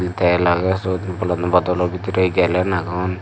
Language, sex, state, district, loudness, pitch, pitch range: Chakma, male, Tripura, Dhalai, -19 LUFS, 90 Hz, 90-95 Hz